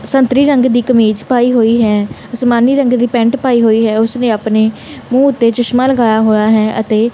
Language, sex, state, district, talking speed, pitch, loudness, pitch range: Punjabi, female, Punjab, Kapurthala, 210 wpm, 235 Hz, -11 LUFS, 220-250 Hz